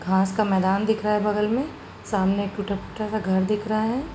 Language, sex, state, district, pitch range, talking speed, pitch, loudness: Hindi, female, Uttar Pradesh, Gorakhpur, 195-215 Hz, 245 wpm, 210 Hz, -24 LUFS